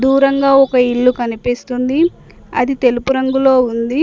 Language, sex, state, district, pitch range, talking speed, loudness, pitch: Telugu, female, Telangana, Mahabubabad, 245-270 Hz, 120 wpm, -14 LUFS, 260 Hz